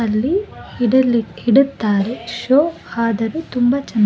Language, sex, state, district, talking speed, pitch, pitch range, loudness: Kannada, female, Karnataka, Bellary, 120 wpm, 240 Hz, 225-275 Hz, -17 LUFS